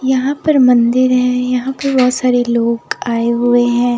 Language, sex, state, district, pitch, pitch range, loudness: Hindi, female, Bihar, Katihar, 250 Hz, 240-255 Hz, -13 LUFS